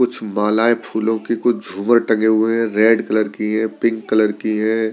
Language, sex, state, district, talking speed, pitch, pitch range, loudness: Hindi, male, Delhi, New Delhi, 205 wpm, 110 Hz, 110-115 Hz, -17 LUFS